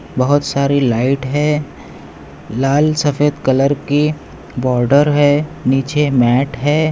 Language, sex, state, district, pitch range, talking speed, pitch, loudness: Hindi, male, Maharashtra, Pune, 130-145 Hz, 110 wpm, 140 Hz, -15 LUFS